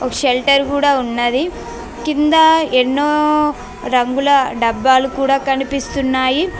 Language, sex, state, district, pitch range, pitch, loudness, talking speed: Telugu, female, Telangana, Mahabubabad, 255-290 Hz, 270 Hz, -15 LUFS, 80 wpm